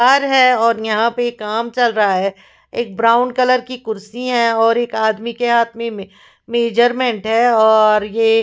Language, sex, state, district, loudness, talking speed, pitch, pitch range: Hindi, female, Punjab, Fazilka, -15 LUFS, 185 wpm, 230 Hz, 220-240 Hz